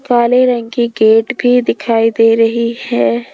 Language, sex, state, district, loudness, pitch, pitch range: Hindi, female, Rajasthan, Jaipur, -12 LUFS, 235 Hz, 225-245 Hz